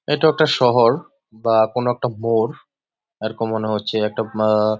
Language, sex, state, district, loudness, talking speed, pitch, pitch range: Bengali, male, West Bengal, Jalpaiguri, -19 LUFS, 150 wpm, 115 Hz, 110-125 Hz